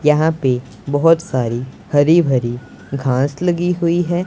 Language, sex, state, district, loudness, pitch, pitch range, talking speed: Hindi, male, Punjab, Pathankot, -17 LUFS, 145 Hz, 130-170 Hz, 140 wpm